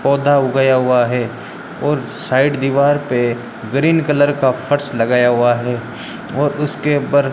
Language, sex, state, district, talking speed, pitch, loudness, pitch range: Hindi, male, Rajasthan, Bikaner, 145 wpm, 135 Hz, -16 LUFS, 120-145 Hz